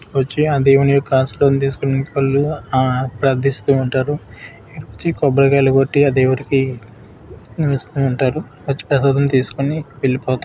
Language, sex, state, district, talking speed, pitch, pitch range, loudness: Telugu, male, Andhra Pradesh, Visakhapatnam, 115 wpm, 135 Hz, 130-140 Hz, -17 LUFS